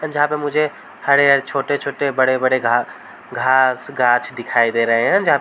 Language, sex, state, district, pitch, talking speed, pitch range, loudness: Hindi, male, Uttar Pradesh, Varanasi, 130 Hz, 165 wpm, 120-140 Hz, -17 LUFS